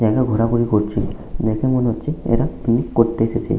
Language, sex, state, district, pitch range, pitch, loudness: Bengali, male, West Bengal, Malda, 110-120 Hz, 115 Hz, -19 LUFS